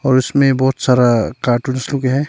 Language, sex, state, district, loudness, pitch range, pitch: Hindi, male, Arunachal Pradesh, Longding, -15 LUFS, 125-135 Hz, 130 Hz